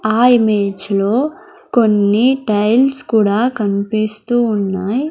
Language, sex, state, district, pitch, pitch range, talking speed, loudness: Telugu, female, Andhra Pradesh, Sri Satya Sai, 220 Hz, 205-245 Hz, 95 wpm, -15 LUFS